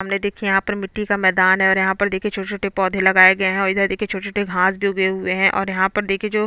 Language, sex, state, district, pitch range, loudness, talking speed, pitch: Hindi, female, Chhattisgarh, Bastar, 190-200 Hz, -18 LUFS, 285 wpm, 195 Hz